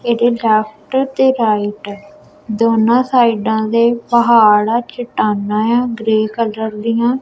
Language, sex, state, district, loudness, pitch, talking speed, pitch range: Punjabi, female, Punjab, Kapurthala, -14 LUFS, 230 Hz, 115 wpm, 215-240 Hz